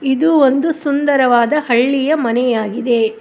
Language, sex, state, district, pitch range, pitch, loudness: Kannada, female, Karnataka, Koppal, 240-290 Hz, 265 Hz, -14 LUFS